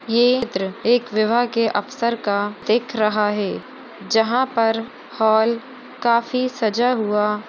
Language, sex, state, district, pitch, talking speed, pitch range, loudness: Hindi, male, Maharashtra, Dhule, 225 Hz, 130 wpm, 210-240 Hz, -20 LUFS